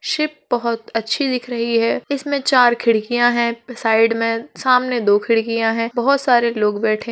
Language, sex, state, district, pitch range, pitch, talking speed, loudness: Hindi, female, Uttar Pradesh, Jalaun, 230-250 Hz, 235 Hz, 175 wpm, -18 LUFS